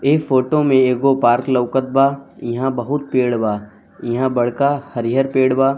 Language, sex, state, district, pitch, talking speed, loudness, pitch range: Bhojpuri, male, Bihar, Gopalganj, 130 Hz, 165 wpm, -17 LUFS, 120-140 Hz